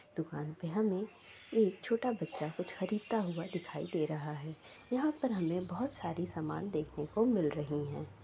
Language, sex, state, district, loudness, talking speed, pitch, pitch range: Maithili, female, Bihar, Sitamarhi, -36 LUFS, 190 wpm, 175 Hz, 155-215 Hz